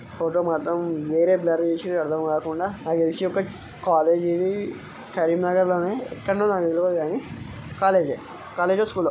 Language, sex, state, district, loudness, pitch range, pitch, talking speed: Telugu, male, Telangana, Karimnagar, -23 LUFS, 165-185 Hz, 175 Hz, 130 wpm